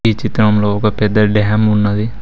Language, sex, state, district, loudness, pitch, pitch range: Telugu, male, Telangana, Mahabubabad, -14 LUFS, 105 Hz, 105-110 Hz